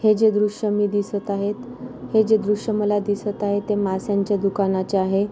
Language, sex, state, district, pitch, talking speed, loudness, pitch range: Marathi, female, Maharashtra, Pune, 205 Hz, 180 wpm, -21 LUFS, 200-215 Hz